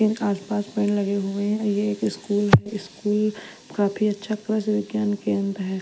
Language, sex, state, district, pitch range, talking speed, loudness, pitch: Hindi, female, Punjab, Fazilka, 200-215 Hz, 185 wpm, -24 LUFS, 205 Hz